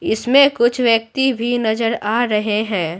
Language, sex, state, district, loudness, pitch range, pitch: Hindi, female, Bihar, Patna, -16 LUFS, 215-245 Hz, 230 Hz